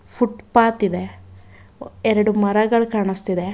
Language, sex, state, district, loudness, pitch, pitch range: Kannada, female, Karnataka, Bangalore, -18 LUFS, 205 Hz, 180-225 Hz